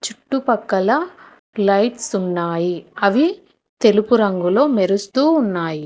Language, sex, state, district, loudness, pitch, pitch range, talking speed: Telugu, female, Telangana, Hyderabad, -18 LUFS, 215 Hz, 190-265 Hz, 80 wpm